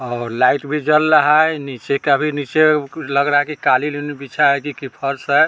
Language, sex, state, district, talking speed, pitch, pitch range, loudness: Hindi, male, Bihar, Vaishali, 230 wpm, 145 Hz, 140-150 Hz, -17 LUFS